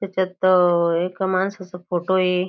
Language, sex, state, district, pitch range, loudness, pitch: Marathi, female, Maharashtra, Aurangabad, 180-185 Hz, -20 LUFS, 185 Hz